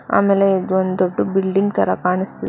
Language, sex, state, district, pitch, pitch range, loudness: Kannada, female, Karnataka, Bangalore, 190 Hz, 185-195 Hz, -18 LUFS